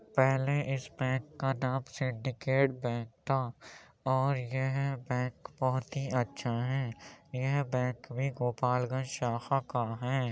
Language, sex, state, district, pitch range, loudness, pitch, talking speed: Hindi, male, Uttar Pradesh, Jyotiba Phule Nagar, 125-135 Hz, -33 LUFS, 130 Hz, 130 wpm